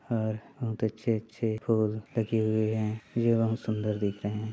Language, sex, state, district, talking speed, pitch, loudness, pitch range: Chhattisgarhi, male, Chhattisgarh, Bilaspur, 170 wpm, 110 Hz, -30 LUFS, 110-115 Hz